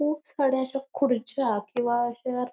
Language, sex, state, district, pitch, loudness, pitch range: Marathi, female, Maharashtra, Pune, 255 Hz, -27 LUFS, 240-275 Hz